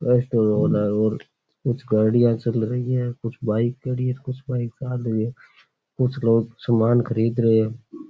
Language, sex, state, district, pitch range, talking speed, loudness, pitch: Rajasthani, male, Rajasthan, Churu, 110-125 Hz, 150 wpm, -22 LUFS, 120 Hz